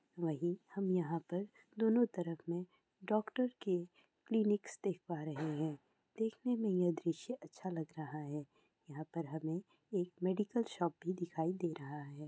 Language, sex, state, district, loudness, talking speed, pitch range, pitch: Hindi, female, Bihar, Kishanganj, -39 LUFS, 160 wpm, 160-210 Hz, 175 Hz